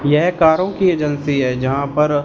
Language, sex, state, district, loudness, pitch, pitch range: Hindi, male, Punjab, Fazilka, -16 LUFS, 150 Hz, 140-160 Hz